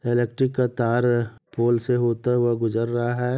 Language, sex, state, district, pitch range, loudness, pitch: Hindi, male, Bihar, Madhepura, 115-125 Hz, -23 LUFS, 120 Hz